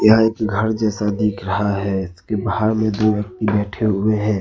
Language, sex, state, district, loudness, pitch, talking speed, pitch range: Hindi, male, Jharkhand, Ranchi, -19 LUFS, 105 Hz, 205 wpm, 100-110 Hz